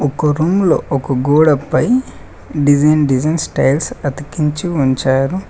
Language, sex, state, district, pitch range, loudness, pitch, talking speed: Telugu, male, Telangana, Mahabubabad, 135-160 Hz, -15 LUFS, 145 Hz, 120 wpm